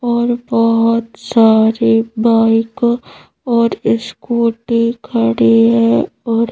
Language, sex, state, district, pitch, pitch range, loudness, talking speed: Hindi, female, Madhya Pradesh, Bhopal, 230 Hz, 220-235 Hz, -14 LUFS, 90 wpm